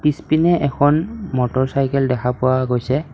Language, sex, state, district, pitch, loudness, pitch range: Assamese, male, Assam, Kamrup Metropolitan, 135 Hz, -18 LUFS, 130-150 Hz